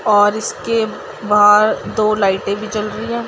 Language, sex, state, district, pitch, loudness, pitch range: Hindi, male, Bihar, Sitamarhi, 215 Hz, -15 LUFS, 205-220 Hz